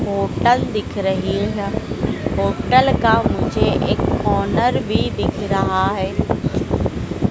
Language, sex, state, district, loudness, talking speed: Hindi, female, Madhya Pradesh, Dhar, -19 LUFS, 105 wpm